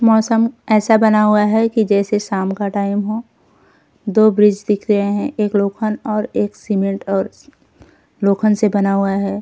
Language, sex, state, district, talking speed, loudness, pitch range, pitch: Hindi, female, Uttar Pradesh, Jyotiba Phule Nagar, 180 wpm, -16 LUFS, 200-215 Hz, 210 Hz